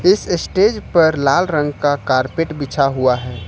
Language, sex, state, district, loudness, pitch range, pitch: Hindi, male, Jharkhand, Ranchi, -16 LUFS, 135-170 Hz, 145 Hz